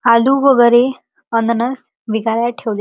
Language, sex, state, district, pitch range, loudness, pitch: Marathi, male, Maharashtra, Chandrapur, 230-255 Hz, -14 LUFS, 235 Hz